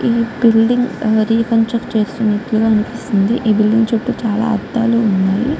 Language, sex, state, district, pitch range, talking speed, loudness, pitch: Telugu, female, Andhra Pradesh, Guntur, 215-235 Hz, 130 wpm, -15 LUFS, 225 Hz